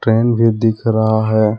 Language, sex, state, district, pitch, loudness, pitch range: Hindi, male, Jharkhand, Palamu, 110 Hz, -15 LUFS, 110-115 Hz